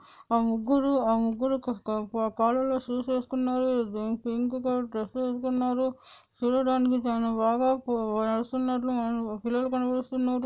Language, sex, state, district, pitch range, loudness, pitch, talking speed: Telugu, female, Andhra Pradesh, Anantapur, 230-255 Hz, -28 LUFS, 250 Hz, 95 wpm